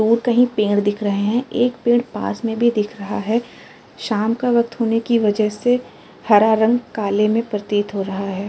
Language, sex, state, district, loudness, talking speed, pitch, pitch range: Hindi, female, Uttar Pradesh, Jalaun, -19 LUFS, 205 wpm, 220 Hz, 210-235 Hz